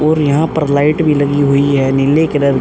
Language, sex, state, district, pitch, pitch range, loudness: Hindi, male, Uttar Pradesh, Hamirpur, 145 Hz, 140-155 Hz, -12 LUFS